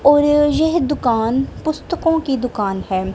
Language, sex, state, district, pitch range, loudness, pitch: Hindi, female, Punjab, Kapurthala, 225-305 Hz, -17 LUFS, 285 Hz